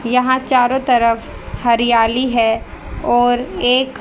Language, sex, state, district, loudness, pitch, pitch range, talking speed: Hindi, female, Haryana, Rohtak, -15 LUFS, 245 Hz, 235-255 Hz, 105 wpm